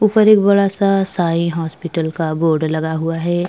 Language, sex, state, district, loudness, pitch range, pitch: Hindi, female, Bihar, Vaishali, -16 LUFS, 160-195 Hz, 170 Hz